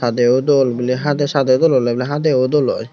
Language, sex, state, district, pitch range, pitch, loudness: Chakma, male, Tripura, Unakoti, 125-145 Hz, 130 Hz, -16 LUFS